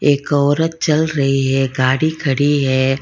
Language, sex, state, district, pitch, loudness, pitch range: Hindi, female, Karnataka, Bangalore, 140 Hz, -16 LUFS, 135-155 Hz